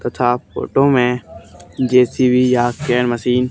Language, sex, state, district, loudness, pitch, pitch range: Hindi, male, Haryana, Charkhi Dadri, -16 LUFS, 125 Hz, 120-125 Hz